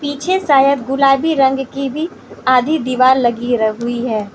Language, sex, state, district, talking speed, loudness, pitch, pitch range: Hindi, female, Manipur, Imphal West, 165 wpm, -15 LUFS, 270 Hz, 245-285 Hz